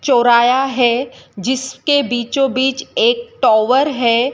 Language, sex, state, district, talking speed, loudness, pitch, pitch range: Hindi, female, Madhya Pradesh, Dhar, 110 wpm, -15 LUFS, 260 Hz, 240-275 Hz